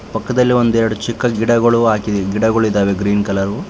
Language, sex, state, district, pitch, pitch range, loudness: Kannada, male, Karnataka, Bangalore, 110 Hz, 100-115 Hz, -15 LUFS